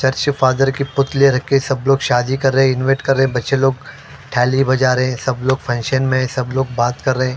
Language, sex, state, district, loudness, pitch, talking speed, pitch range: Hindi, female, Punjab, Fazilka, -16 LUFS, 130 Hz, 260 wpm, 130-135 Hz